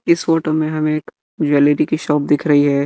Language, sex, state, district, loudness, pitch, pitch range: Hindi, male, Bihar, West Champaran, -16 LUFS, 155 Hz, 145-155 Hz